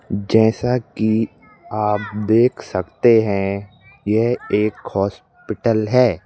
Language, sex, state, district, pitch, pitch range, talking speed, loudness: Hindi, male, Madhya Pradesh, Bhopal, 110 Hz, 105-115 Hz, 95 wpm, -19 LUFS